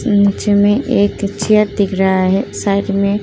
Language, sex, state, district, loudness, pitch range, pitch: Hindi, female, Uttar Pradesh, Muzaffarnagar, -14 LUFS, 200-205 Hz, 200 Hz